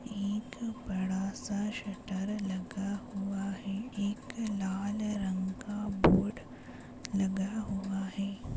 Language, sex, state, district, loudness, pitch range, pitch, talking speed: Hindi, female, Maharashtra, Chandrapur, -34 LUFS, 195-210 Hz, 200 Hz, 100 wpm